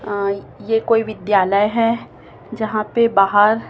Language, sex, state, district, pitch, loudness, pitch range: Hindi, female, Chhattisgarh, Raipur, 215 Hz, -17 LUFS, 200-225 Hz